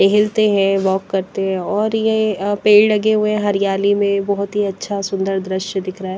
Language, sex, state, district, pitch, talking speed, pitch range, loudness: Hindi, female, Punjab, Pathankot, 200 Hz, 205 wpm, 195-210 Hz, -17 LUFS